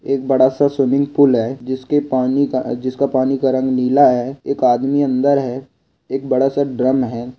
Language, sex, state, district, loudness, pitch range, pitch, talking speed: Hindi, male, Goa, North and South Goa, -16 LUFS, 130-140 Hz, 130 Hz, 205 wpm